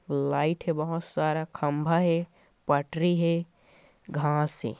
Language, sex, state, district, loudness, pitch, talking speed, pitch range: Hindi, male, Chhattisgarh, Korba, -28 LUFS, 160 Hz, 125 wpm, 150-170 Hz